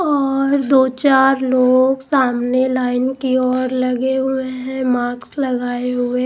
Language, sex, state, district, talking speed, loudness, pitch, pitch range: Hindi, female, Punjab, Pathankot, 135 wpm, -17 LUFS, 260 Hz, 250-265 Hz